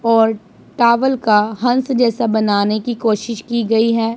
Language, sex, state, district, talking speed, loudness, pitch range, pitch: Hindi, female, Punjab, Pathankot, 160 wpm, -16 LUFS, 220-240 Hz, 230 Hz